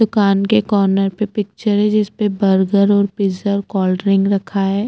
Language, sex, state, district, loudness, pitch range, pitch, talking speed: Hindi, female, Chhattisgarh, Bastar, -16 LUFS, 195-210 Hz, 200 Hz, 170 wpm